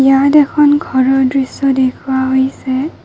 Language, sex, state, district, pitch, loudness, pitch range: Assamese, female, Assam, Kamrup Metropolitan, 270 Hz, -13 LUFS, 265-275 Hz